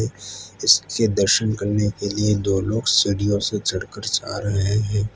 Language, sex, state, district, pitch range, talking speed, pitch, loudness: Hindi, male, Gujarat, Valsad, 100-105 Hz, 150 wpm, 105 Hz, -20 LUFS